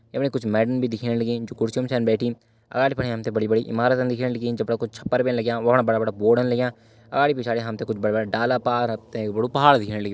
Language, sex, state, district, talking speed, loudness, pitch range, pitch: Hindi, male, Uttarakhand, Uttarkashi, 270 wpm, -23 LUFS, 110-125 Hz, 115 Hz